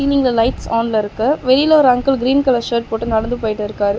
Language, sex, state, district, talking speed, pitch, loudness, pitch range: Tamil, female, Tamil Nadu, Chennai, 195 wpm, 235 Hz, -16 LUFS, 220-265 Hz